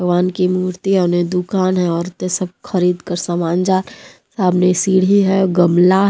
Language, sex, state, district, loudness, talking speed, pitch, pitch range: Hindi, female, Jharkhand, Deoghar, -16 LUFS, 155 wpm, 185 Hz, 175-190 Hz